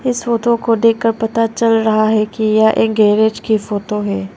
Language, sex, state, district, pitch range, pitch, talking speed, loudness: Hindi, female, Arunachal Pradesh, Longding, 215-230 Hz, 220 Hz, 205 wpm, -14 LUFS